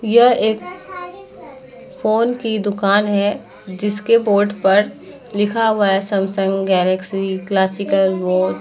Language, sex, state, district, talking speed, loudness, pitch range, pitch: Hindi, female, Uttar Pradesh, Muzaffarnagar, 110 wpm, -17 LUFS, 190-220 Hz, 200 Hz